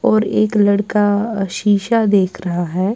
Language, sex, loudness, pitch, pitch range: Urdu, female, -16 LUFS, 205 Hz, 195-215 Hz